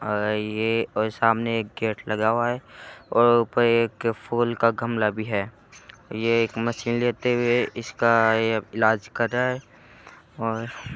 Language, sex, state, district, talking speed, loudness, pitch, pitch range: Hindi, male, Bihar, Kishanganj, 150 wpm, -23 LUFS, 115 Hz, 110-120 Hz